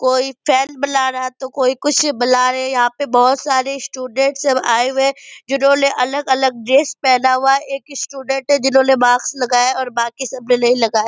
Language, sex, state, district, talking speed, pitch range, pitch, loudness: Hindi, female, Bihar, Purnia, 205 wpm, 250-275 Hz, 260 Hz, -16 LUFS